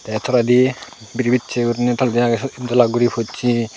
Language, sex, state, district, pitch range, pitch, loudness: Chakma, male, Tripura, Unakoti, 115-125 Hz, 120 Hz, -18 LUFS